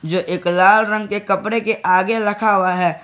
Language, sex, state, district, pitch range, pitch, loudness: Hindi, male, Jharkhand, Garhwa, 180-215 Hz, 195 Hz, -16 LUFS